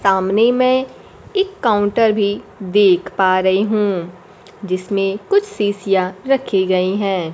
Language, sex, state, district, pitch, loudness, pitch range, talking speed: Hindi, female, Bihar, Kaimur, 200 Hz, -17 LUFS, 190-215 Hz, 125 wpm